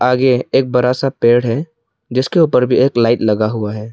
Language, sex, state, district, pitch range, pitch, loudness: Hindi, male, Arunachal Pradesh, Lower Dibang Valley, 115-130 Hz, 125 Hz, -14 LUFS